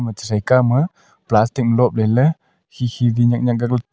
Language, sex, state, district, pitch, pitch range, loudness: Wancho, male, Arunachal Pradesh, Longding, 120 Hz, 115-130 Hz, -17 LUFS